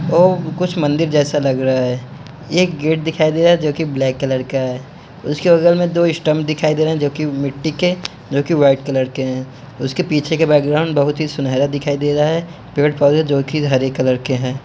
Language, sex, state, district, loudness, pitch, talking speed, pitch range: Hindi, male, Bihar, Gopalganj, -16 LUFS, 150 Hz, 215 wpm, 135-160 Hz